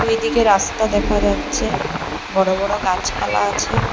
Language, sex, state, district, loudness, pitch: Bengali, female, Assam, Hailakandi, -18 LUFS, 185 Hz